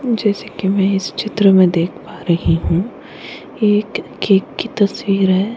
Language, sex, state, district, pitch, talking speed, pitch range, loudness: Hindi, female, Bihar, Kishanganj, 195 Hz, 150 wpm, 190-210 Hz, -16 LUFS